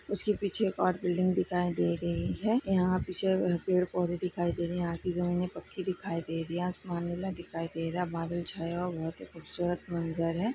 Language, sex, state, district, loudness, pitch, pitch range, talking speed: Hindi, female, Maharashtra, Sindhudurg, -32 LUFS, 175 Hz, 170-185 Hz, 205 wpm